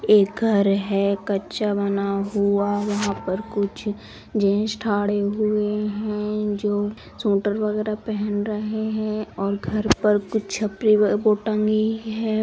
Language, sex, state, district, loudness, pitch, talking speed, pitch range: Hindi, female, Bihar, East Champaran, -23 LUFS, 210 Hz, 135 wpm, 200-215 Hz